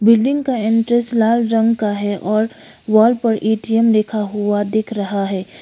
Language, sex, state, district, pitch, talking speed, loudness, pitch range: Hindi, female, Sikkim, Gangtok, 220 Hz, 170 wpm, -16 LUFS, 205-230 Hz